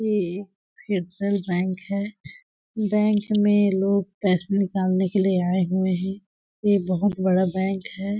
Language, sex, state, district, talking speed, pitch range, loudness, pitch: Hindi, female, Chhattisgarh, Balrampur, 145 wpm, 185-205 Hz, -23 LUFS, 195 Hz